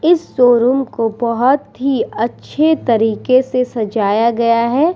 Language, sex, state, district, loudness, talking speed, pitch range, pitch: Hindi, female, Bihar, Vaishali, -15 LUFS, 145 wpm, 230-270 Hz, 245 Hz